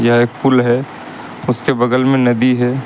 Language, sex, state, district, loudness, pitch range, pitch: Hindi, male, Uttar Pradesh, Lucknow, -14 LUFS, 120-130 Hz, 125 Hz